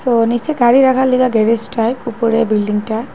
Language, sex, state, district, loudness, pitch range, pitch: Bengali, female, Assam, Hailakandi, -14 LUFS, 225-255 Hz, 235 Hz